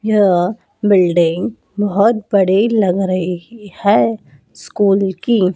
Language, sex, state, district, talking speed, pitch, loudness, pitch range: Hindi, female, Madhya Pradesh, Dhar, 95 wpm, 195 Hz, -15 LUFS, 180-210 Hz